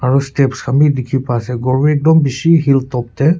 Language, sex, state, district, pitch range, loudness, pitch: Nagamese, male, Nagaland, Kohima, 130-150 Hz, -14 LUFS, 135 Hz